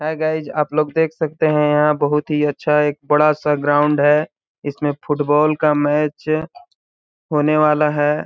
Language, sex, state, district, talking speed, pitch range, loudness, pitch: Hindi, male, Chhattisgarh, Balrampur, 160 wpm, 150-155 Hz, -17 LUFS, 150 Hz